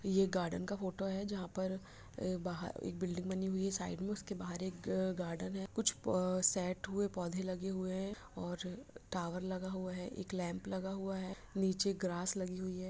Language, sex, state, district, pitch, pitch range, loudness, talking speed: Hindi, female, Bihar, Begusarai, 185 Hz, 180-195 Hz, -39 LUFS, 215 wpm